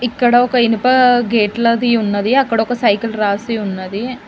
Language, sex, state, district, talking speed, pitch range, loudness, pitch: Telugu, female, Telangana, Mahabubabad, 155 wpm, 215-245 Hz, -14 LUFS, 230 Hz